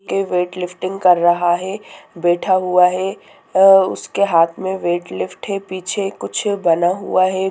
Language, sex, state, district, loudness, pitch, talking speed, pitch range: Hindi, female, Bihar, Sitamarhi, -17 LUFS, 185 Hz, 170 wpm, 175-195 Hz